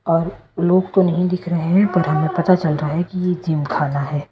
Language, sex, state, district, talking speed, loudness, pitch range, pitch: Hindi, female, Delhi, New Delhi, 235 wpm, -18 LUFS, 150-180 Hz, 175 Hz